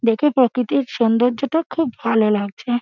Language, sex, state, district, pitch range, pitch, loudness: Bengali, female, West Bengal, Dakshin Dinajpur, 230-280 Hz, 245 Hz, -19 LUFS